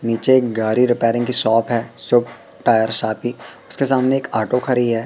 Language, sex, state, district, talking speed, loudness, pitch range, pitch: Hindi, male, Madhya Pradesh, Katni, 190 wpm, -17 LUFS, 115-125 Hz, 120 Hz